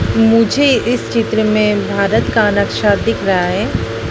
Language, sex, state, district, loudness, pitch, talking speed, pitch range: Hindi, female, Madhya Pradesh, Dhar, -14 LUFS, 210 Hz, 145 wpm, 195-225 Hz